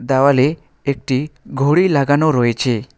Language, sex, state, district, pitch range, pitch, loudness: Bengali, male, West Bengal, Alipurduar, 130-145 Hz, 140 Hz, -16 LUFS